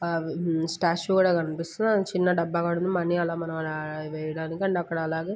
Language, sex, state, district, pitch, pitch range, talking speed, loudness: Telugu, female, Andhra Pradesh, Guntur, 170 Hz, 160-180 Hz, 155 wpm, -26 LUFS